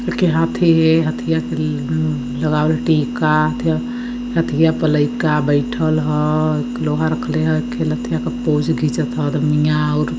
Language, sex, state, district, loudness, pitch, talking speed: Awadhi, male, Uttar Pradesh, Varanasi, -17 LUFS, 80 Hz, 145 wpm